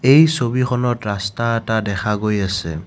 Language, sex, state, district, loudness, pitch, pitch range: Assamese, male, Assam, Kamrup Metropolitan, -18 LUFS, 110 Hz, 100-120 Hz